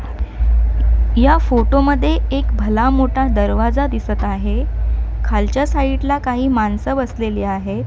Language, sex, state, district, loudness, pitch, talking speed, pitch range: Marathi, female, Maharashtra, Mumbai Suburban, -17 LUFS, 230 Hz, 120 wpm, 195-275 Hz